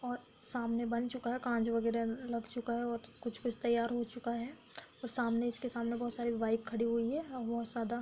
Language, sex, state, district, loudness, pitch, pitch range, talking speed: Hindi, female, Bihar, Darbhanga, -37 LUFS, 235 Hz, 230-245 Hz, 200 wpm